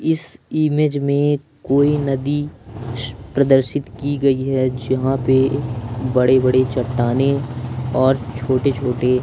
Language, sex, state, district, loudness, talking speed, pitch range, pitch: Hindi, male, Madhya Pradesh, Umaria, -19 LUFS, 105 wpm, 125-140 Hz, 130 Hz